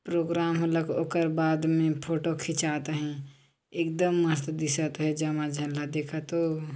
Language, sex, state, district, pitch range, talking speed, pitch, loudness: Hindi, female, Chhattisgarh, Jashpur, 150-165 Hz, 150 wpm, 155 Hz, -28 LUFS